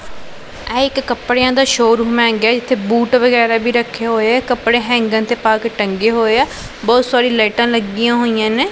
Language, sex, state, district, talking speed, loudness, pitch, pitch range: Punjabi, female, Punjab, Pathankot, 170 wpm, -14 LUFS, 235 Hz, 225-245 Hz